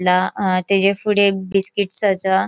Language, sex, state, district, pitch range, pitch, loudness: Konkani, female, Goa, North and South Goa, 185-200 Hz, 195 Hz, -17 LUFS